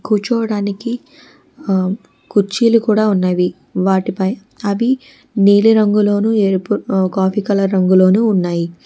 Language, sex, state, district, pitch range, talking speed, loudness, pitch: Telugu, female, Telangana, Hyderabad, 190-225 Hz, 100 wpm, -15 LUFS, 205 Hz